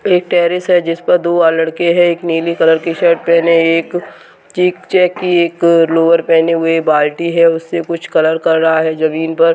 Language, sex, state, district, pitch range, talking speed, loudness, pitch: Hindi, female, Uttarakhand, Tehri Garhwal, 165-175 Hz, 205 wpm, -12 LUFS, 165 Hz